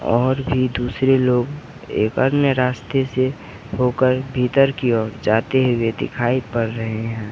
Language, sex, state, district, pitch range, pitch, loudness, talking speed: Hindi, male, Bihar, Begusarai, 115-130 Hz, 125 Hz, -19 LUFS, 145 wpm